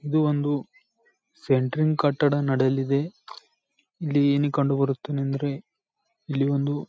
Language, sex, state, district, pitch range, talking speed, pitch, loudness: Kannada, male, Karnataka, Bijapur, 140-155 Hz, 95 wpm, 145 Hz, -24 LUFS